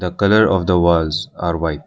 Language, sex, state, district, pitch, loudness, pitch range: English, male, Arunachal Pradesh, Lower Dibang Valley, 85 Hz, -16 LUFS, 80-95 Hz